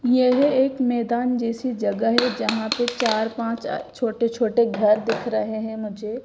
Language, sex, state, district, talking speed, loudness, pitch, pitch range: Hindi, female, Gujarat, Gandhinagar, 175 wpm, -22 LUFS, 230 Hz, 220-245 Hz